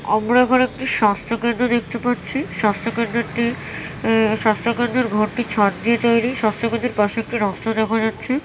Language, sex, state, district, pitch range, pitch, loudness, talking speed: Bengali, female, West Bengal, North 24 Parganas, 215-240 Hz, 230 Hz, -19 LUFS, 140 wpm